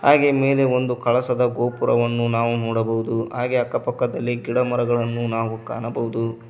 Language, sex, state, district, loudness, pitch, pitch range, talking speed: Kannada, male, Karnataka, Koppal, -21 LUFS, 120 Hz, 115-125 Hz, 110 wpm